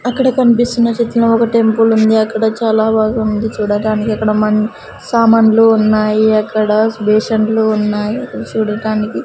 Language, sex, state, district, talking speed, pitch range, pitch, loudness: Telugu, female, Andhra Pradesh, Sri Satya Sai, 125 wpm, 215-225 Hz, 220 Hz, -13 LUFS